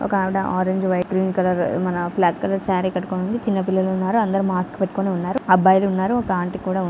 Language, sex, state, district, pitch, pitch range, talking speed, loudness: Telugu, female, Telangana, Karimnagar, 190 Hz, 185-195 Hz, 45 wpm, -20 LUFS